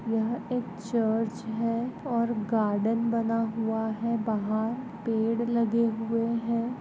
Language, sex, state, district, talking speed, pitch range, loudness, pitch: Hindi, female, Goa, North and South Goa, 125 wpm, 225-235 Hz, -28 LUFS, 230 Hz